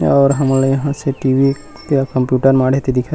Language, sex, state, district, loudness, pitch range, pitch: Chhattisgarhi, male, Chhattisgarh, Rajnandgaon, -15 LUFS, 130-140 Hz, 135 Hz